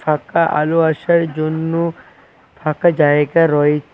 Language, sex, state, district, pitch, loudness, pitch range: Bengali, male, West Bengal, Cooch Behar, 155 Hz, -16 LUFS, 150-165 Hz